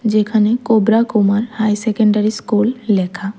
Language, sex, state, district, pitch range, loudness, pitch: Bengali, female, Tripura, West Tripura, 210-220 Hz, -15 LUFS, 215 Hz